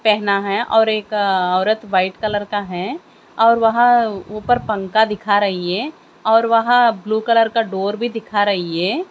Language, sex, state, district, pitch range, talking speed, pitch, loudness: Hindi, female, Haryana, Jhajjar, 200-230 Hz, 170 wpm, 215 Hz, -17 LUFS